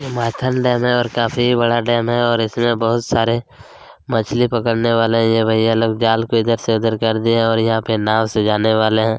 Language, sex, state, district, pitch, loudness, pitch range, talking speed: Hindi, male, Chhattisgarh, Kabirdham, 115 Hz, -16 LUFS, 115-120 Hz, 230 wpm